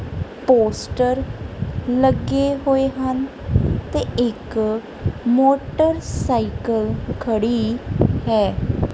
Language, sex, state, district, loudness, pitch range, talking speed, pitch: Punjabi, female, Punjab, Kapurthala, -20 LUFS, 230-270 Hz, 60 wpm, 250 Hz